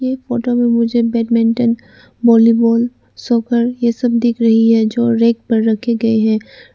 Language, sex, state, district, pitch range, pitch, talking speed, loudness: Hindi, female, Arunachal Pradesh, Lower Dibang Valley, 230-240 Hz, 235 Hz, 160 wpm, -14 LUFS